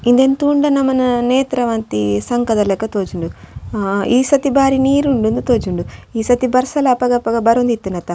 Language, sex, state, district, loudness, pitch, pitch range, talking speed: Tulu, female, Karnataka, Dakshina Kannada, -15 LUFS, 245 Hz, 215-265 Hz, 145 wpm